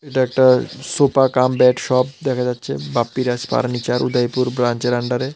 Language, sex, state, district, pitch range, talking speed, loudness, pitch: Bengali, male, Tripura, South Tripura, 125-130 Hz, 155 wpm, -18 LUFS, 125 Hz